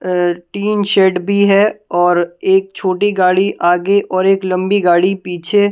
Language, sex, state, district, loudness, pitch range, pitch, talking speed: Hindi, female, Punjab, Kapurthala, -14 LUFS, 180-200 Hz, 190 Hz, 155 wpm